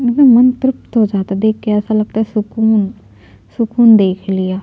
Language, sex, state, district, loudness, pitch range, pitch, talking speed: Hindi, female, Chhattisgarh, Jashpur, -13 LUFS, 195-230 Hz, 215 Hz, 205 wpm